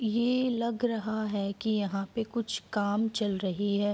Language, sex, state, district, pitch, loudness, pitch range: Hindi, female, Bihar, Araria, 215 Hz, -30 LUFS, 205-230 Hz